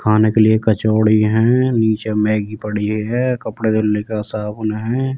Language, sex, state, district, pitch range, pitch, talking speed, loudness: Hindi, male, Uttar Pradesh, Jyotiba Phule Nagar, 105-110 Hz, 110 Hz, 160 wpm, -17 LUFS